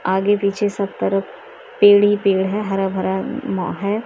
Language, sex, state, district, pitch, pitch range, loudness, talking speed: Hindi, female, Maharashtra, Mumbai Suburban, 200 Hz, 195-205 Hz, -18 LUFS, 175 wpm